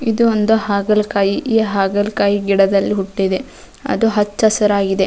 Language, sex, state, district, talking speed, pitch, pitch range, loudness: Kannada, female, Karnataka, Dharwad, 120 wpm, 205 Hz, 195-220 Hz, -16 LUFS